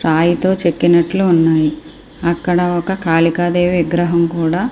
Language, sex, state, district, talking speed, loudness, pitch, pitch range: Telugu, female, Andhra Pradesh, Srikakulam, 100 wpm, -15 LUFS, 170 Hz, 165-175 Hz